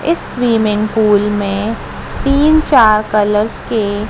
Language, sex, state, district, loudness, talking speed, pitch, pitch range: Hindi, female, Madhya Pradesh, Katni, -13 LUFS, 115 wpm, 215 Hz, 210-245 Hz